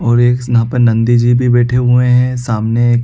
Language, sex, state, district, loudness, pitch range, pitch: Hindi, male, Chhattisgarh, Rajnandgaon, -12 LUFS, 120-125 Hz, 120 Hz